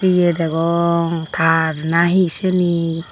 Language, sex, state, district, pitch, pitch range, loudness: Chakma, female, Tripura, Unakoti, 170 Hz, 165-175 Hz, -17 LUFS